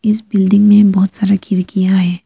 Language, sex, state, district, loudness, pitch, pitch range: Hindi, female, Arunachal Pradesh, Lower Dibang Valley, -12 LUFS, 200 Hz, 190-205 Hz